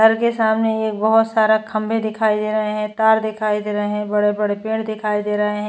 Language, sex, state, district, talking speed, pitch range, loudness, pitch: Hindi, female, Uttar Pradesh, Jyotiba Phule Nagar, 240 wpm, 210-220 Hz, -19 LUFS, 215 Hz